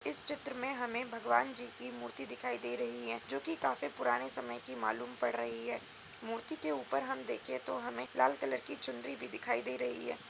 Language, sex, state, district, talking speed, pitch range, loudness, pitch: Hindi, female, Uttar Pradesh, Budaun, 225 wpm, 120-145 Hz, -38 LUFS, 125 Hz